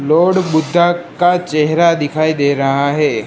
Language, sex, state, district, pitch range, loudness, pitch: Hindi, female, Gujarat, Gandhinagar, 150-175 Hz, -14 LUFS, 160 Hz